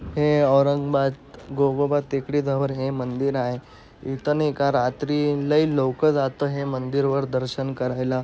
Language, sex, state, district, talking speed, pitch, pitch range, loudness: Marathi, male, Maharashtra, Aurangabad, 130 wpm, 140 Hz, 130-145 Hz, -23 LUFS